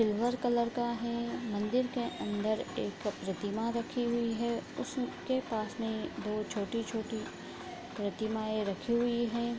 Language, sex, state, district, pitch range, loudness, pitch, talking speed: Hindi, female, Bihar, Bhagalpur, 215-235 Hz, -34 LUFS, 230 Hz, 130 wpm